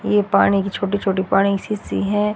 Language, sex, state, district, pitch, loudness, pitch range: Hindi, female, Haryana, Rohtak, 200 Hz, -19 LUFS, 195-205 Hz